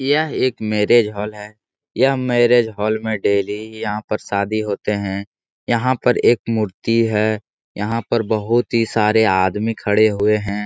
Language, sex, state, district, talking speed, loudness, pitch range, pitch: Hindi, male, Bihar, Jahanabad, 165 wpm, -18 LUFS, 105-115 Hz, 110 Hz